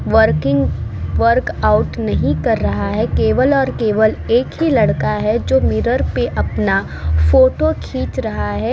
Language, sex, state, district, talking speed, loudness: Hindi, female, Uttar Pradesh, Muzaffarnagar, 145 wpm, -16 LUFS